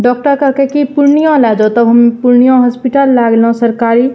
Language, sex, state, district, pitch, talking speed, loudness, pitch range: Maithili, female, Bihar, Purnia, 245 Hz, 190 wpm, -9 LUFS, 235-275 Hz